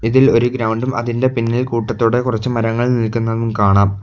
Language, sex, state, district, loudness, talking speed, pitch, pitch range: Malayalam, male, Kerala, Kollam, -16 LUFS, 150 wpm, 115 Hz, 115-125 Hz